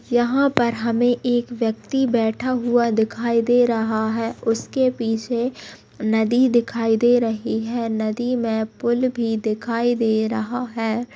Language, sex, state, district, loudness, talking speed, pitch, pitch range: Hindi, female, Bihar, Bhagalpur, -21 LUFS, 140 wpm, 235 Hz, 225-245 Hz